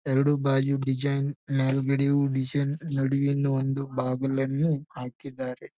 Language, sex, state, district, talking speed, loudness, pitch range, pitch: Kannada, male, Karnataka, Bijapur, 95 wpm, -26 LUFS, 135-140 Hz, 135 Hz